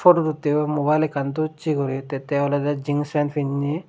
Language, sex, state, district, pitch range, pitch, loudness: Chakma, male, Tripura, Dhalai, 140-155 Hz, 145 Hz, -23 LUFS